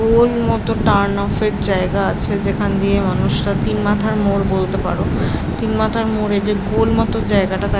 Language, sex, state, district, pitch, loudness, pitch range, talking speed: Bengali, female, West Bengal, Jhargram, 210 Hz, -17 LUFS, 200-225 Hz, 185 wpm